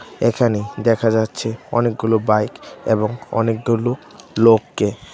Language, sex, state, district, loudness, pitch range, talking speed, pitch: Bengali, male, Tripura, West Tripura, -18 LUFS, 110-115 Hz, 105 wpm, 115 Hz